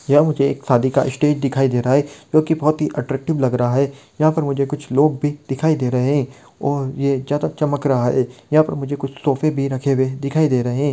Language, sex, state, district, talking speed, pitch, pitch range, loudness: Hindi, male, Bihar, Darbhanga, 245 wpm, 140 Hz, 135-150 Hz, -19 LUFS